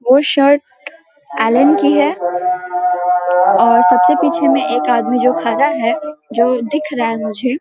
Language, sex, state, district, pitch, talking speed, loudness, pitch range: Hindi, female, Bihar, Samastipur, 240 Hz, 160 wpm, -14 LUFS, 180-275 Hz